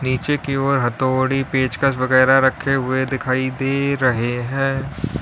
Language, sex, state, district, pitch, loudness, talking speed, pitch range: Hindi, male, Uttar Pradesh, Lalitpur, 130 Hz, -19 LUFS, 140 wpm, 130-135 Hz